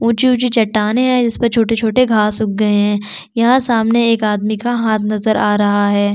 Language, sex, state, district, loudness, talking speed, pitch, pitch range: Hindi, female, Chhattisgarh, Sukma, -14 LUFS, 185 wpm, 220 Hz, 210-235 Hz